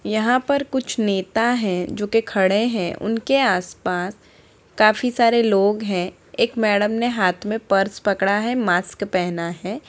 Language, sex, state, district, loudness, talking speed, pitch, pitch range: Hindi, female, Bihar, Samastipur, -20 LUFS, 170 wpm, 210 Hz, 190-235 Hz